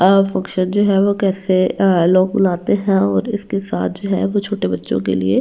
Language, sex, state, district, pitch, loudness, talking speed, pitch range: Hindi, female, Delhi, New Delhi, 195 Hz, -16 LUFS, 200 wpm, 185-195 Hz